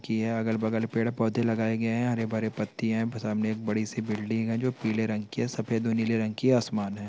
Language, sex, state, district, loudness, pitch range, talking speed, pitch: Hindi, male, Bihar, Sitamarhi, -28 LUFS, 110-115 Hz, 220 wpm, 110 Hz